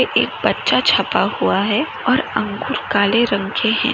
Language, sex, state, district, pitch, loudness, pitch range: Hindi, female, Rajasthan, Nagaur, 220 Hz, -17 LUFS, 200-235 Hz